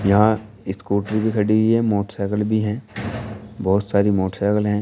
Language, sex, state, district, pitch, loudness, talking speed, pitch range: Hindi, male, Uttar Pradesh, Shamli, 105 Hz, -20 LUFS, 160 wpm, 100-110 Hz